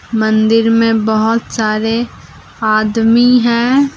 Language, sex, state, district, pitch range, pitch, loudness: Hindi, female, Jharkhand, Deoghar, 220-235 Hz, 225 Hz, -12 LUFS